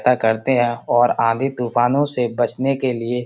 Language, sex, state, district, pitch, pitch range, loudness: Hindi, male, Uttar Pradesh, Budaun, 120 Hz, 120-130 Hz, -18 LUFS